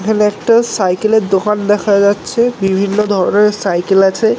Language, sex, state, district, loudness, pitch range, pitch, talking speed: Bengali, male, West Bengal, North 24 Parganas, -13 LUFS, 195-220 Hz, 205 Hz, 135 wpm